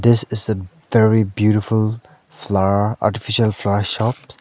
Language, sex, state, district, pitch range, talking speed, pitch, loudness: English, male, Arunachal Pradesh, Lower Dibang Valley, 105-115 Hz, 125 wpm, 110 Hz, -18 LUFS